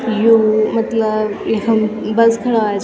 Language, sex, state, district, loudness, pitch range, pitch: Garhwali, female, Uttarakhand, Tehri Garhwal, -15 LUFS, 215-230 Hz, 220 Hz